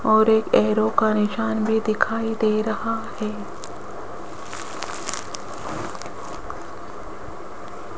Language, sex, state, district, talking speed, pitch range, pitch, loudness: Hindi, female, Rajasthan, Jaipur, 75 wpm, 215-220 Hz, 220 Hz, -23 LUFS